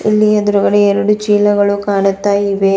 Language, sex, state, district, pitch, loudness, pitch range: Kannada, female, Karnataka, Bidar, 205 Hz, -12 LUFS, 200-205 Hz